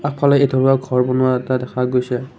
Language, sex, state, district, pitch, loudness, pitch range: Assamese, male, Assam, Kamrup Metropolitan, 130 Hz, -17 LUFS, 125-135 Hz